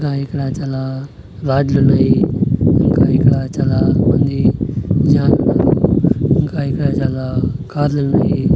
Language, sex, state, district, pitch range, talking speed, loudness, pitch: Telugu, male, Andhra Pradesh, Annamaya, 135-145 Hz, 120 wpm, -15 LUFS, 140 Hz